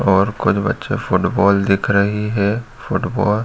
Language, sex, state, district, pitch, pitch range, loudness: Hindi, male, Chhattisgarh, Bilaspur, 105 Hz, 100-110 Hz, -17 LUFS